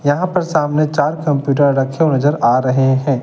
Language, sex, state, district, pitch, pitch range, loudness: Hindi, male, Bihar, West Champaran, 145 Hz, 135-155 Hz, -15 LUFS